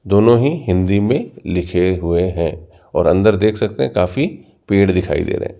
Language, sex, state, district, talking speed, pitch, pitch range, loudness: Hindi, male, Rajasthan, Jaipur, 180 wpm, 100 Hz, 90-105 Hz, -16 LUFS